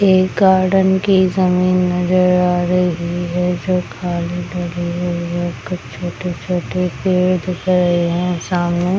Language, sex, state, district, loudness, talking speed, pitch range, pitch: Hindi, female, Bihar, Madhepura, -17 LUFS, 140 wpm, 175-185 Hz, 180 Hz